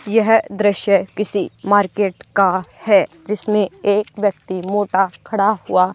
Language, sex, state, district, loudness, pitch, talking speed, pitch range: Hindi, female, Haryana, Charkhi Dadri, -17 LUFS, 205 Hz, 120 wpm, 195-210 Hz